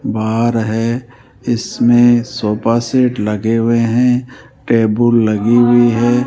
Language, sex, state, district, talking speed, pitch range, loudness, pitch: Hindi, male, Rajasthan, Jaipur, 115 wpm, 115-120 Hz, -13 LUFS, 120 Hz